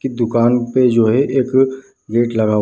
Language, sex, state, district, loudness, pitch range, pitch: Hindi, male, Bihar, Madhepura, -15 LUFS, 115-130 Hz, 120 Hz